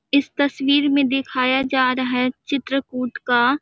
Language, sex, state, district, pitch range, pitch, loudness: Hindi, female, Chhattisgarh, Balrampur, 255-280 Hz, 265 Hz, -20 LUFS